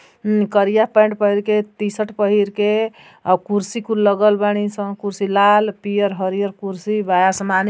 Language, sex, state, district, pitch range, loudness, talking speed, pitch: Bhojpuri, female, Uttar Pradesh, Ghazipur, 200-210 Hz, -18 LUFS, 170 wpm, 205 Hz